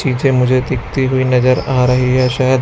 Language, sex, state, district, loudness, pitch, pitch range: Hindi, male, Chhattisgarh, Raipur, -14 LUFS, 130 Hz, 125-130 Hz